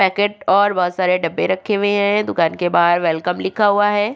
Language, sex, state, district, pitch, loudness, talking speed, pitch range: Hindi, female, Uttarakhand, Tehri Garhwal, 190 Hz, -17 LUFS, 215 wpm, 175-205 Hz